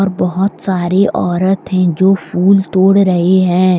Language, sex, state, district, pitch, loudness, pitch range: Hindi, female, Jharkhand, Deoghar, 185 Hz, -12 LUFS, 180-195 Hz